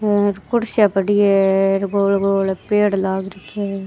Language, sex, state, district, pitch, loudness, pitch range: Rajasthani, female, Rajasthan, Churu, 195 Hz, -17 LUFS, 195-205 Hz